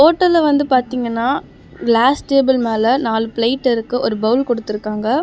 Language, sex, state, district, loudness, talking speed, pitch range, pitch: Tamil, female, Tamil Nadu, Chennai, -16 LUFS, 140 wpm, 230-275 Hz, 245 Hz